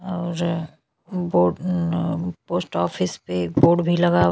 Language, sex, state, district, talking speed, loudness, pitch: Bhojpuri, female, Uttar Pradesh, Ghazipur, 125 wpm, -22 LUFS, 135 Hz